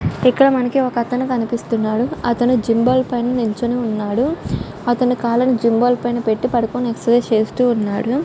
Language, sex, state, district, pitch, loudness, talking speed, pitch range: Telugu, female, Andhra Pradesh, Chittoor, 240 Hz, -17 LUFS, 140 wpm, 230-250 Hz